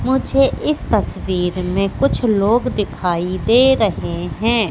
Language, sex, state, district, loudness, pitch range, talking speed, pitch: Hindi, female, Madhya Pradesh, Katni, -17 LUFS, 185-250 Hz, 125 wpm, 210 Hz